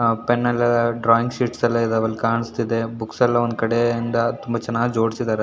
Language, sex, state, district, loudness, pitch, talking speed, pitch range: Kannada, male, Karnataka, Shimoga, -20 LUFS, 115 Hz, 175 wpm, 115-120 Hz